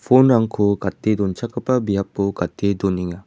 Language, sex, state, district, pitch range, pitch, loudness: Garo, male, Meghalaya, West Garo Hills, 95-115 Hz, 100 Hz, -20 LUFS